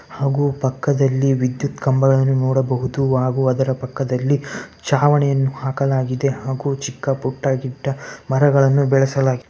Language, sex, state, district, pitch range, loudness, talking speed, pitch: Kannada, male, Karnataka, Bellary, 130-140 Hz, -19 LUFS, 100 wpm, 135 Hz